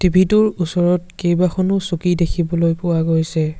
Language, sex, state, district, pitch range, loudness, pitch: Assamese, male, Assam, Sonitpur, 165-180 Hz, -17 LUFS, 175 Hz